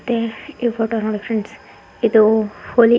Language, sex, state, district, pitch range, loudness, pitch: Kannada, female, Karnataka, Bijapur, 220-235 Hz, -18 LUFS, 225 Hz